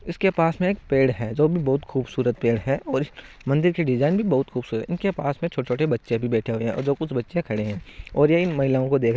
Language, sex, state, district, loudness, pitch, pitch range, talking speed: Marwari, male, Rajasthan, Nagaur, -23 LUFS, 135 Hz, 115-165 Hz, 230 wpm